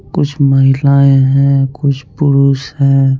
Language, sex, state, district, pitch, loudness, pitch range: Hindi, male, Chandigarh, Chandigarh, 140 Hz, -11 LUFS, 135-140 Hz